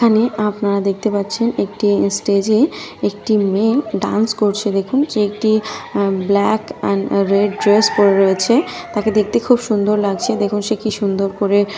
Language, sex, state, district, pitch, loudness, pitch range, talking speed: Bengali, female, West Bengal, North 24 Parganas, 210 Hz, -16 LUFS, 200-220 Hz, 150 wpm